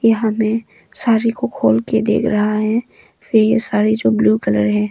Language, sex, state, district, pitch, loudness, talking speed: Hindi, female, Arunachal Pradesh, Longding, 215 Hz, -16 LUFS, 195 wpm